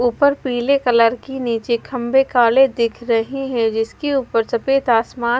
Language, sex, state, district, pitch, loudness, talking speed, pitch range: Hindi, female, Punjab, Fazilka, 245 Hz, -18 LUFS, 155 wpm, 230-270 Hz